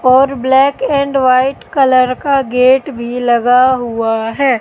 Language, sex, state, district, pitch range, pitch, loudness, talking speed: Hindi, female, Madhya Pradesh, Katni, 245-270 Hz, 260 Hz, -12 LUFS, 145 wpm